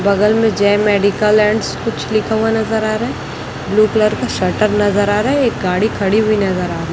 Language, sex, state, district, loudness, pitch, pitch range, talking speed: Hindi, male, Chhattisgarh, Raipur, -15 LUFS, 210 Hz, 205-220 Hz, 240 wpm